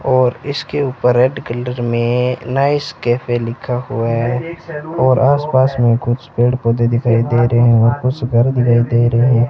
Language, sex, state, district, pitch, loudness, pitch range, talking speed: Hindi, male, Rajasthan, Bikaner, 125 Hz, -15 LUFS, 120-130 Hz, 175 wpm